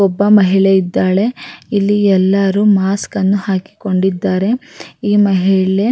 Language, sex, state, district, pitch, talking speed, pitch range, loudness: Kannada, female, Karnataka, Raichur, 195 Hz, 90 wpm, 190-205 Hz, -13 LUFS